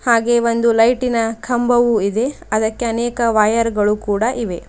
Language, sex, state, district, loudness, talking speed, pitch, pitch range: Kannada, female, Karnataka, Bidar, -16 LUFS, 140 wpm, 230 Hz, 220-240 Hz